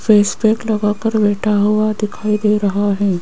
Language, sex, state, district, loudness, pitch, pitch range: Hindi, female, Rajasthan, Jaipur, -16 LUFS, 210 Hz, 205-215 Hz